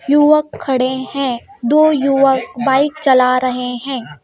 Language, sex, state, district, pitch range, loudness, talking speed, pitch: Hindi, female, Madhya Pradesh, Bhopal, 255-285 Hz, -15 LUFS, 125 wpm, 265 Hz